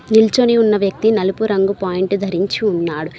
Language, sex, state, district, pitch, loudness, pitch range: Telugu, female, Telangana, Mahabubabad, 200 Hz, -16 LUFS, 190-220 Hz